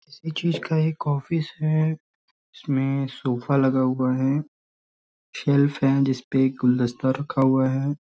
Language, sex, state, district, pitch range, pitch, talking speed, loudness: Hindi, male, Bihar, Sitamarhi, 130-150 Hz, 135 Hz, 135 wpm, -23 LUFS